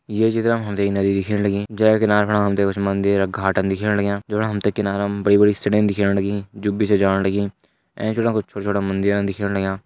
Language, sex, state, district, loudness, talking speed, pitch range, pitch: Hindi, male, Uttarakhand, Tehri Garhwal, -20 LUFS, 235 wpm, 100-105 Hz, 100 Hz